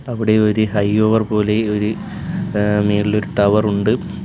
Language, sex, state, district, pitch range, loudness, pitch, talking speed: Malayalam, male, Kerala, Kollam, 105-110 Hz, -17 LUFS, 105 Hz, 140 wpm